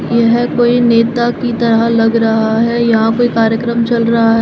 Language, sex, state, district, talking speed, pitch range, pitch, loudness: Hindi, female, Uttar Pradesh, Shamli, 190 wpm, 225-240 Hz, 230 Hz, -12 LUFS